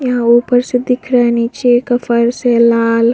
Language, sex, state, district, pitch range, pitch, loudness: Hindi, female, Bihar, Vaishali, 235-245 Hz, 240 Hz, -12 LUFS